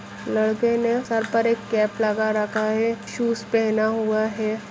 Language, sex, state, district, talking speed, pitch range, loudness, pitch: Hindi, female, Bihar, Saran, 165 wpm, 215-230 Hz, -23 LUFS, 220 Hz